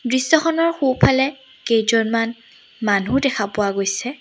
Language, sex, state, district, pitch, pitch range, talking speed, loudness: Assamese, female, Assam, Sonitpur, 245 Hz, 225-270 Hz, 100 wpm, -19 LUFS